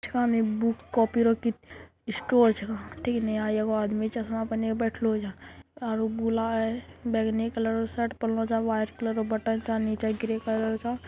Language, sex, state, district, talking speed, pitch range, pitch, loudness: Angika, female, Bihar, Bhagalpur, 190 wpm, 220-230 Hz, 225 Hz, -28 LUFS